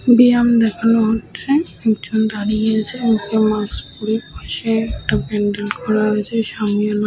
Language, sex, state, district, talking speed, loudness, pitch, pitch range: Bengali, female, Jharkhand, Sahebganj, 135 wpm, -18 LUFS, 220 Hz, 210-230 Hz